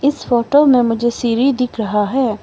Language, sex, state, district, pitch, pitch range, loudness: Hindi, female, Arunachal Pradesh, Longding, 240 Hz, 230-270 Hz, -15 LUFS